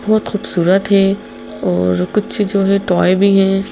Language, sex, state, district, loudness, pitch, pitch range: Hindi, female, Madhya Pradesh, Bhopal, -14 LUFS, 195 Hz, 185-205 Hz